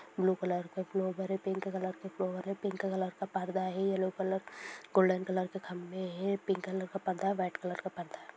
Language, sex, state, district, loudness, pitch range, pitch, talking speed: Hindi, female, Bihar, Sitamarhi, -35 LUFS, 185-195 Hz, 190 Hz, 230 wpm